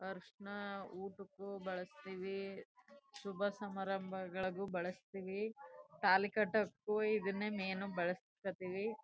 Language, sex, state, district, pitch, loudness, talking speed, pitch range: Kannada, female, Karnataka, Chamarajanagar, 195 Hz, -41 LUFS, 75 wpm, 190-205 Hz